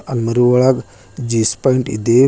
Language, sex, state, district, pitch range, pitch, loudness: Kannada, male, Karnataka, Bidar, 110-130 Hz, 120 Hz, -15 LUFS